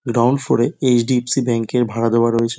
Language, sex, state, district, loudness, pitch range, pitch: Bengali, male, West Bengal, Dakshin Dinajpur, -17 LUFS, 115-125 Hz, 120 Hz